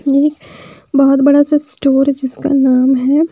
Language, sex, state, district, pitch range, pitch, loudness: Hindi, female, Bihar, West Champaran, 270-290 Hz, 280 Hz, -12 LUFS